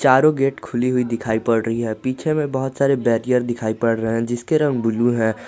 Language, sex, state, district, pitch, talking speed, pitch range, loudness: Hindi, male, Jharkhand, Garhwa, 120 Hz, 230 wpm, 115-135 Hz, -20 LUFS